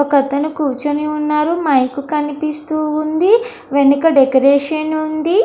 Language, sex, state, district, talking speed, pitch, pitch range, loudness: Telugu, female, Andhra Pradesh, Anantapur, 110 wpm, 300 Hz, 280-310 Hz, -15 LUFS